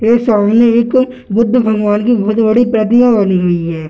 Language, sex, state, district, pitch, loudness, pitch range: Hindi, male, Bihar, Gaya, 225 Hz, -11 LUFS, 205-235 Hz